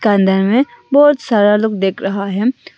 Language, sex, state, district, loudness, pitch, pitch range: Hindi, female, Arunachal Pradesh, Longding, -14 LUFS, 210 Hz, 195-260 Hz